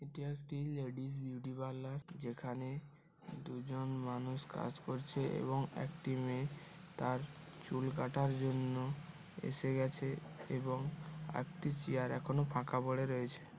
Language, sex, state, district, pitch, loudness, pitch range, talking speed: Bengali, male, West Bengal, Paschim Medinipur, 135 Hz, -41 LUFS, 130-150 Hz, 115 wpm